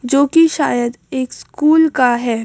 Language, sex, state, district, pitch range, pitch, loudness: Hindi, female, Madhya Pradesh, Bhopal, 245-305 Hz, 260 Hz, -14 LUFS